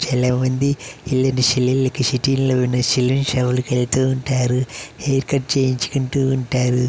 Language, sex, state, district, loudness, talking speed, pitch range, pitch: Telugu, male, Andhra Pradesh, Chittoor, -19 LUFS, 150 wpm, 125-135 Hz, 130 Hz